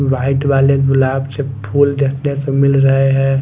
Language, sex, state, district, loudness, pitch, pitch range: Hindi, male, Chandigarh, Chandigarh, -14 LUFS, 135 Hz, 135-140 Hz